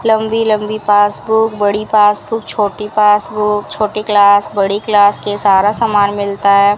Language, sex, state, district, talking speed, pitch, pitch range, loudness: Hindi, female, Rajasthan, Bikaner, 130 wpm, 210 Hz, 205-215 Hz, -13 LUFS